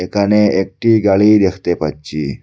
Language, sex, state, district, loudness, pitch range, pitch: Bengali, male, Assam, Hailakandi, -14 LUFS, 85-105 Hz, 95 Hz